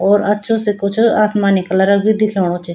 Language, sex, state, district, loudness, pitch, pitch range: Garhwali, female, Uttarakhand, Tehri Garhwal, -14 LUFS, 205 Hz, 190-215 Hz